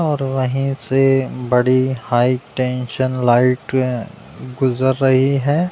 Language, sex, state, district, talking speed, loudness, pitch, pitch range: Hindi, male, Uttar Pradesh, Deoria, 105 wpm, -17 LUFS, 130 Hz, 125-135 Hz